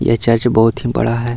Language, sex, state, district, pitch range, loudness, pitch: Hindi, male, Bihar, Gaya, 115-120 Hz, -15 LUFS, 115 Hz